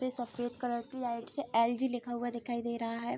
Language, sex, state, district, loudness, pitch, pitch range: Hindi, female, Bihar, Araria, -35 LUFS, 240 Hz, 235-245 Hz